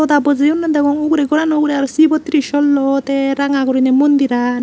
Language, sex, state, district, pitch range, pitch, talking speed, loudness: Chakma, female, Tripura, Unakoti, 275-300 Hz, 285 Hz, 180 wpm, -14 LUFS